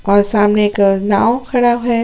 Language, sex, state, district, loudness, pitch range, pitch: Hindi, female, Chhattisgarh, Sukma, -13 LUFS, 200-240 Hz, 210 Hz